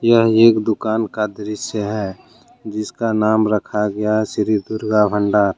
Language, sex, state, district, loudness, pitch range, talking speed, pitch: Hindi, male, Jharkhand, Deoghar, -18 LUFS, 105-110 Hz, 140 wpm, 105 Hz